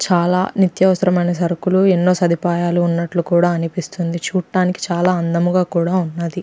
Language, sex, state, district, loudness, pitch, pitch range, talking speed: Telugu, female, Andhra Pradesh, Krishna, -17 LUFS, 175 Hz, 170-185 Hz, 120 wpm